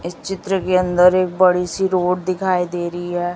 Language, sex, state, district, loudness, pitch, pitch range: Hindi, female, Chhattisgarh, Raipur, -18 LUFS, 180 Hz, 175-185 Hz